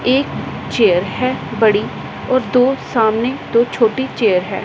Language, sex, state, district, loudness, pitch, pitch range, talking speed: Hindi, female, Punjab, Pathankot, -16 LUFS, 235 Hz, 215-255 Hz, 140 wpm